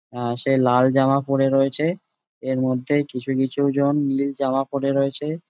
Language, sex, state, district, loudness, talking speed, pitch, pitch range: Bengali, male, West Bengal, Jalpaiguri, -21 LUFS, 155 wpm, 135 Hz, 130-140 Hz